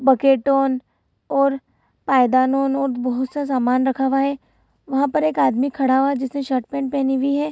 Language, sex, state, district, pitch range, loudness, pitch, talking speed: Hindi, female, Bihar, Saharsa, 260-275 Hz, -19 LUFS, 270 Hz, 190 wpm